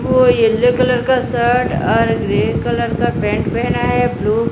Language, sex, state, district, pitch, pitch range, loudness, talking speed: Hindi, female, Odisha, Sambalpur, 245 Hz, 230-255 Hz, -15 LUFS, 185 wpm